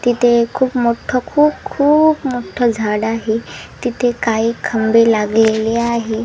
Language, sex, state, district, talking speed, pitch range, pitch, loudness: Marathi, female, Maharashtra, Washim, 125 wpm, 225-250 Hz, 235 Hz, -15 LUFS